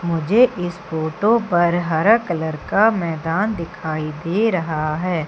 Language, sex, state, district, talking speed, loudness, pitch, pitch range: Hindi, female, Madhya Pradesh, Umaria, 135 wpm, -19 LUFS, 170 Hz, 160-210 Hz